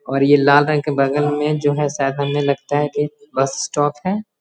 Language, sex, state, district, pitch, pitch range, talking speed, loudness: Hindi, male, Bihar, Muzaffarpur, 145 Hz, 140-150 Hz, 230 wpm, -18 LUFS